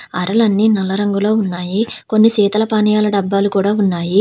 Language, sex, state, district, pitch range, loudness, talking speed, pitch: Telugu, female, Telangana, Hyderabad, 195-215 Hz, -15 LUFS, 145 wpm, 205 Hz